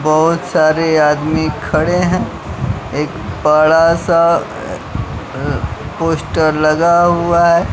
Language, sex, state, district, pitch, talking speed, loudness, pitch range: Hindi, male, Bihar, West Champaran, 160 Hz, 95 wpm, -14 LUFS, 155-170 Hz